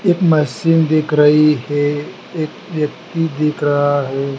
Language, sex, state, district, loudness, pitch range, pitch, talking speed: Hindi, male, Madhya Pradesh, Dhar, -16 LUFS, 145-160 Hz, 150 Hz, 135 wpm